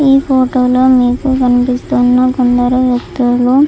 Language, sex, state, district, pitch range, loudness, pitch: Telugu, female, Andhra Pradesh, Chittoor, 245-260 Hz, -11 LUFS, 250 Hz